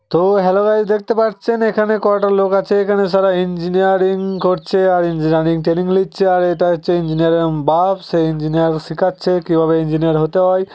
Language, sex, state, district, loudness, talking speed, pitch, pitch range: Bengali, male, West Bengal, Jhargram, -15 LUFS, 175 wpm, 185 Hz, 165-195 Hz